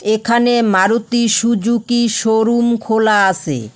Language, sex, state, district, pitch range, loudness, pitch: Bengali, female, West Bengal, Alipurduar, 210-235 Hz, -14 LUFS, 225 Hz